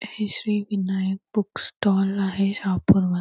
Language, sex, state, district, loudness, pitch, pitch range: Marathi, female, Karnataka, Belgaum, -23 LUFS, 195 Hz, 190-210 Hz